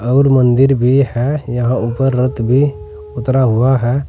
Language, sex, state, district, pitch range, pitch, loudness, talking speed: Hindi, male, Uttar Pradesh, Saharanpur, 120-135 Hz, 130 Hz, -14 LUFS, 160 wpm